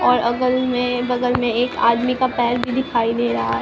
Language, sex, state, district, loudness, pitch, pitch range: Hindi, male, Bihar, Katihar, -19 LUFS, 245 Hz, 235-250 Hz